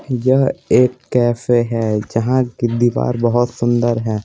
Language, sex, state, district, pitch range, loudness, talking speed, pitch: Hindi, male, Bihar, Patna, 115-125 Hz, -16 LUFS, 140 wpm, 120 Hz